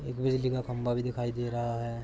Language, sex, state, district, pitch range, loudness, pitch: Hindi, male, Uttar Pradesh, Jalaun, 120-125 Hz, -32 LUFS, 120 Hz